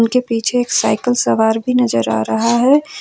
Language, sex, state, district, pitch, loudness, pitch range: Hindi, female, Jharkhand, Ranchi, 240 Hz, -15 LUFS, 220-250 Hz